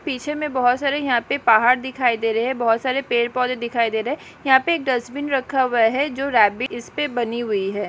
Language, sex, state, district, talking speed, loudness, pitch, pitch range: Hindi, female, Uttarakhand, Tehri Garhwal, 230 wpm, -20 LUFS, 250 Hz, 235-275 Hz